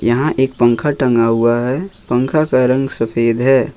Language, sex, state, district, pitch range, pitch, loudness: Hindi, male, Jharkhand, Ranchi, 120-135 Hz, 125 Hz, -15 LUFS